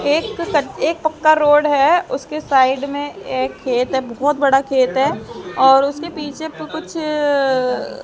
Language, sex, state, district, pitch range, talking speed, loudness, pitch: Hindi, female, Haryana, Jhajjar, 265-310 Hz, 155 wpm, -17 LUFS, 290 Hz